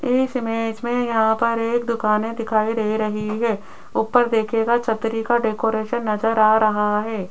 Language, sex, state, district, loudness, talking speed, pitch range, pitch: Hindi, female, Rajasthan, Jaipur, -20 LUFS, 165 wpm, 215-235 Hz, 225 Hz